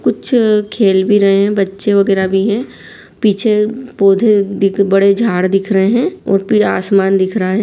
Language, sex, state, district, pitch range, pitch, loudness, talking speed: Hindi, female, Jharkhand, Sahebganj, 195-210 Hz, 200 Hz, -13 LUFS, 175 wpm